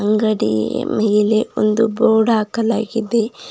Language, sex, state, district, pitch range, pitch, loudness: Kannada, female, Karnataka, Bidar, 215-225 Hz, 220 Hz, -17 LUFS